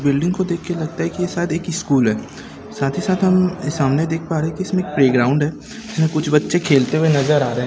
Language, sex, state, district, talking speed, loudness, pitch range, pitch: Hindi, male, Chhattisgarh, Raipur, 265 wpm, -18 LUFS, 145-180 Hz, 160 Hz